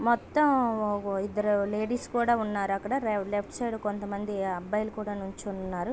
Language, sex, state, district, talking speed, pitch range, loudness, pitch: Telugu, female, Andhra Pradesh, Visakhapatnam, 140 wpm, 200-230 Hz, -29 LUFS, 210 Hz